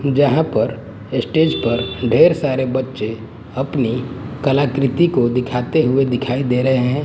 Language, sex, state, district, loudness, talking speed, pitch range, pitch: Hindi, male, Gujarat, Gandhinagar, -17 LUFS, 135 wpm, 125-140 Hz, 130 Hz